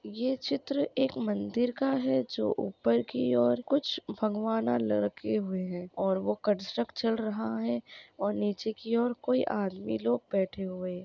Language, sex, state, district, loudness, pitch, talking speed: Hindi, female, Maharashtra, Solapur, -31 LUFS, 205 Hz, 165 wpm